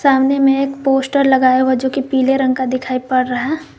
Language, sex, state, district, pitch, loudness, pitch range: Hindi, female, Jharkhand, Garhwa, 265 Hz, -15 LUFS, 255-275 Hz